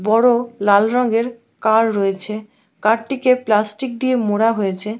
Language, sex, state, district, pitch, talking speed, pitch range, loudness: Bengali, female, West Bengal, Malda, 225 Hz, 145 wpm, 210-245 Hz, -17 LUFS